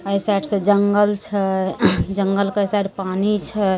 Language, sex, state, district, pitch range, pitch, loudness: Maithili, female, Bihar, Samastipur, 195-205 Hz, 200 Hz, -19 LUFS